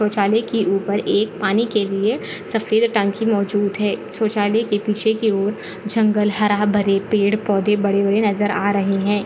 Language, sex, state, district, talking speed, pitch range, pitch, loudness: Hindi, female, Maharashtra, Nagpur, 175 wpm, 200-215 Hz, 210 Hz, -18 LUFS